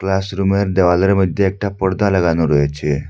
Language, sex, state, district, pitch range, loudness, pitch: Bengali, male, Assam, Hailakandi, 85-100 Hz, -16 LUFS, 95 Hz